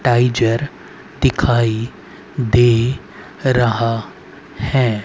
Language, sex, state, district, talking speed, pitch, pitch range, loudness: Hindi, male, Haryana, Rohtak, 60 wpm, 120 Hz, 115-125 Hz, -17 LUFS